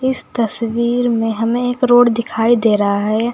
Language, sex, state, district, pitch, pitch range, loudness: Hindi, female, Uttar Pradesh, Saharanpur, 235 Hz, 225-245 Hz, -15 LUFS